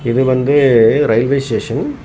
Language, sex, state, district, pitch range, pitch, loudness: Tamil, male, Tamil Nadu, Kanyakumari, 115-135 Hz, 130 Hz, -13 LUFS